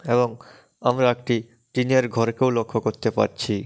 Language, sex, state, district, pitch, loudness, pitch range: Bengali, male, West Bengal, Dakshin Dinajpur, 120 Hz, -23 LUFS, 110-125 Hz